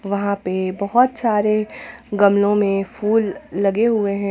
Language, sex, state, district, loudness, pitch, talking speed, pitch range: Hindi, female, Jharkhand, Ranchi, -19 LUFS, 205 Hz, 140 wpm, 200-220 Hz